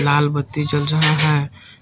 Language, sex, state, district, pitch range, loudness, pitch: Hindi, male, Jharkhand, Palamu, 145-150 Hz, -16 LUFS, 145 Hz